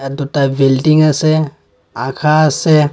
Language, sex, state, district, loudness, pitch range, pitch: Assamese, male, Assam, Kamrup Metropolitan, -13 LUFS, 135-155 Hz, 145 Hz